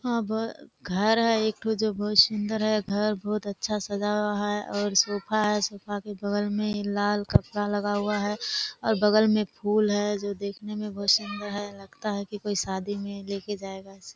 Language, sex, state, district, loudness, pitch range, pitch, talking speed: Hindi, female, Bihar, Kishanganj, -27 LUFS, 205-215 Hz, 205 Hz, 195 wpm